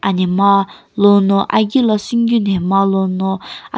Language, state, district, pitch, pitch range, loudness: Sumi, Nagaland, Kohima, 195 Hz, 195-215 Hz, -14 LUFS